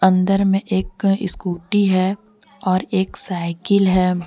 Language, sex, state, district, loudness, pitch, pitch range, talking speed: Hindi, female, Jharkhand, Deoghar, -19 LUFS, 190 Hz, 185-195 Hz, 125 wpm